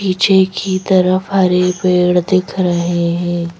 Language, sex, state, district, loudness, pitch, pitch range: Hindi, female, Madhya Pradesh, Bhopal, -14 LUFS, 185 Hz, 175-190 Hz